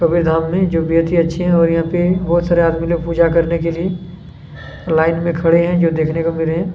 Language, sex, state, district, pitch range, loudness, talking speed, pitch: Hindi, male, Chhattisgarh, Kabirdham, 165-175 Hz, -15 LUFS, 185 wpm, 170 Hz